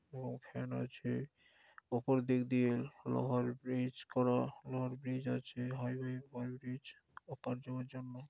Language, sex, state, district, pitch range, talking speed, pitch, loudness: Bengali, male, West Bengal, Dakshin Dinajpur, 125-130 Hz, 125 wpm, 125 Hz, -39 LUFS